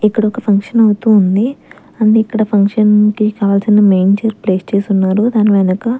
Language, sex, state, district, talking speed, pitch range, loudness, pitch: Telugu, female, Andhra Pradesh, Sri Satya Sai, 180 wpm, 200-220 Hz, -12 LUFS, 210 Hz